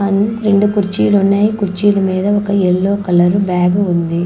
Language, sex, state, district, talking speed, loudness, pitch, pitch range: Telugu, female, Andhra Pradesh, Manyam, 140 wpm, -13 LUFS, 195 Hz, 185-205 Hz